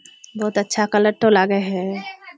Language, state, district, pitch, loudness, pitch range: Surjapuri, Bihar, Kishanganj, 210 Hz, -19 LUFS, 195-220 Hz